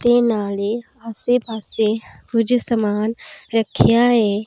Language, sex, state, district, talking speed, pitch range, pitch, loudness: Punjabi, female, Punjab, Pathankot, 110 wpm, 215-240 Hz, 225 Hz, -19 LUFS